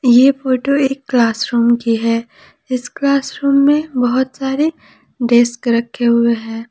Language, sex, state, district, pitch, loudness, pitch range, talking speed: Hindi, female, Jharkhand, Palamu, 250 Hz, -15 LUFS, 235-275 Hz, 135 wpm